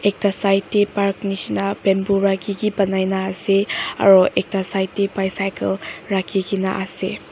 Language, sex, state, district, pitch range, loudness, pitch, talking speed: Nagamese, female, Nagaland, Dimapur, 190-200 Hz, -20 LUFS, 195 Hz, 170 wpm